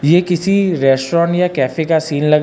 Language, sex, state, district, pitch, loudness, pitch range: Hindi, male, Uttar Pradesh, Lucknow, 165 Hz, -15 LUFS, 150-175 Hz